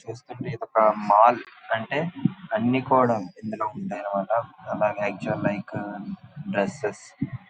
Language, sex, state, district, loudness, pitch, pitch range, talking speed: Telugu, male, Andhra Pradesh, Visakhapatnam, -25 LUFS, 115 Hz, 105-130 Hz, 130 wpm